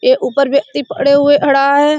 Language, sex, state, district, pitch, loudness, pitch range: Hindi, female, Uttar Pradesh, Budaun, 280 Hz, -12 LUFS, 275-290 Hz